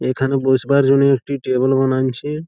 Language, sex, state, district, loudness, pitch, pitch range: Bengali, male, West Bengal, Malda, -17 LUFS, 135 Hz, 130-140 Hz